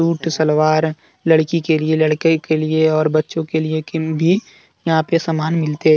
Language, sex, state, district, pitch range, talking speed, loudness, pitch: Hindi, male, Jharkhand, Deoghar, 155-165 Hz, 170 wpm, -17 LUFS, 160 Hz